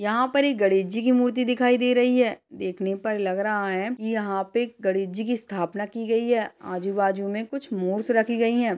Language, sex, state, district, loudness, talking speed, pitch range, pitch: Hindi, male, Uttar Pradesh, Hamirpur, -24 LUFS, 225 wpm, 195-245 Hz, 220 Hz